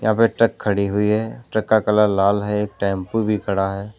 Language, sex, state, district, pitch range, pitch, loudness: Hindi, male, Uttar Pradesh, Lalitpur, 100-110 Hz, 105 Hz, -19 LUFS